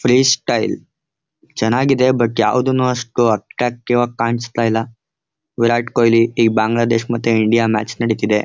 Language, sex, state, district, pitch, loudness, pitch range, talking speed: Kannada, male, Karnataka, Mysore, 115 Hz, -16 LUFS, 115-125 Hz, 120 wpm